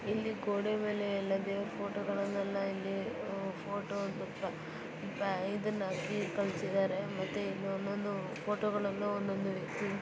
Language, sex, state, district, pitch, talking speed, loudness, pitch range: Kannada, female, Karnataka, Mysore, 200 Hz, 100 wpm, -36 LUFS, 195-205 Hz